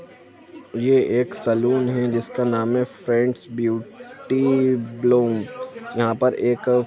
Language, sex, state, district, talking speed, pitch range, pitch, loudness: Hindi, male, Jharkhand, Sahebganj, 120 wpm, 120-130 Hz, 125 Hz, -21 LUFS